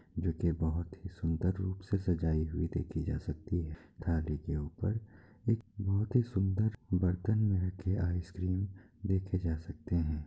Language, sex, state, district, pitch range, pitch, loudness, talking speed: Hindi, male, Bihar, Kishanganj, 80-100 Hz, 90 Hz, -35 LUFS, 165 wpm